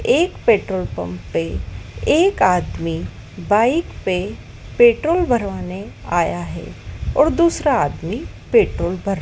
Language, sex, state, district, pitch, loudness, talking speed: Hindi, female, Madhya Pradesh, Dhar, 200 Hz, -19 LUFS, 110 wpm